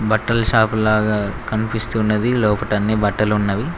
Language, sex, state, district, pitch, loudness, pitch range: Telugu, male, Telangana, Mahabubabad, 110 Hz, -18 LUFS, 105-110 Hz